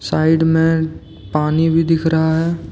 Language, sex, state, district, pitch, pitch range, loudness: Hindi, male, Jharkhand, Deoghar, 160 Hz, 155-165 Hz, -16 LUFS